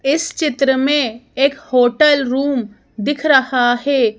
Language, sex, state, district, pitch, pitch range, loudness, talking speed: Hindi, female, Madhya Pradesh, Bhopal, 270 Hz, 245-285 Hz, -16 LUFS, 130 wpm